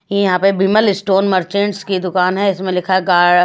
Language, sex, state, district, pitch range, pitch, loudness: Hindi, female, Haryana, Rohtak, 185-200 Hz, 190 Hz, -15 LUFS